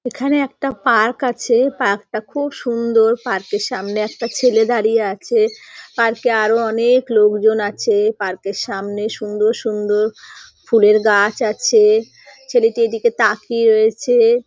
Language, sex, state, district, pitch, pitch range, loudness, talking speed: Bengali, female, West Bengal, North 24 Parganas, 230 Hz, 215-255 Hz, -16 LUFS, 135 wpm